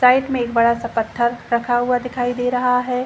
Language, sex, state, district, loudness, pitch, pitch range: Hindi, female, Chhattisgarh, Rajnandgaon, -19 LUFS, 245 Hz, 235-250 Hz